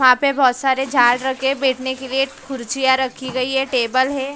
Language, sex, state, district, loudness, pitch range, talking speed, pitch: Hindi, female, Maharashtra, Mumbai Suburban, -18 LUFS, 255-270 Hz, 245 wpm, 265 Hz